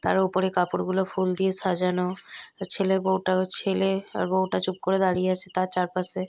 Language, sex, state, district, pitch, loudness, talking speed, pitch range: Bengali, female, West Bengal, North 24 Parganas, 185 Hz, -24 LUFS, 170 wpm, 185-190 Hz